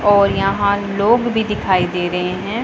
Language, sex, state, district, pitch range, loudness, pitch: Hindi, female, Punjab, Pathankot, 185-210 Hz, -17 LUFS, 200 Hz